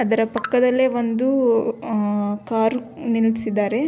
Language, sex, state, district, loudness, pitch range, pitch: Kannada, female, Karnataka, Belgaum, -20 LUFS, 220-250 Hz, 230 Hz